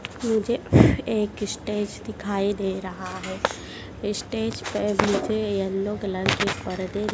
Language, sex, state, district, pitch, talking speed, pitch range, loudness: Hindi, female, Madhya Pradesh, Dhar, 205 Hz, 110 wpm, 195-215 Hz, -25 LUFS